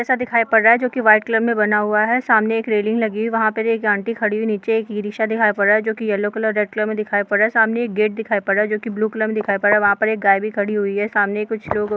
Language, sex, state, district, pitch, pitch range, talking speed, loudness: Hindi, female, Bihar, Bhagalpur, 215 Hz, 210-225 Hz, 345 wpm, -18 LUFS